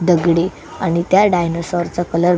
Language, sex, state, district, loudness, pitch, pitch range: Marathi, female, Maharashtra, Solapur, -17 LUFS, 175 Hz, 170-180 Hz